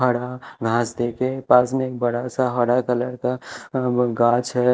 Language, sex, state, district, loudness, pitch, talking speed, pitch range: Hindi, male, Chhattisgarh, Raipur, -21 LUFS, 125 Hz, 150 wpm, 120-125 Hz